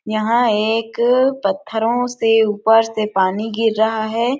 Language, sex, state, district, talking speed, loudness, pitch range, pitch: Hindi, female, Chhattisgarh, Sarguja, 150 wpm, -17 LUFS, 215-235 Hz, 225 Hz